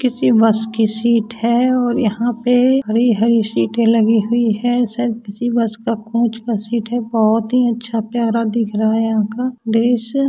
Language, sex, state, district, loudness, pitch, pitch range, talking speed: Bhojpuri, male, Bihar, Saran, -16 LUFS, 230 Hz, 225-240 Hz, 175 wpm